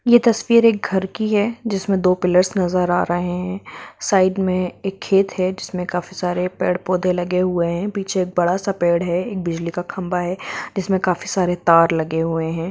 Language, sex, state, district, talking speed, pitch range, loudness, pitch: Hindi, female, Jharkhand, Jamtara, 205 wpm, 175-195 Hz, -19 LUFS, 185 Hz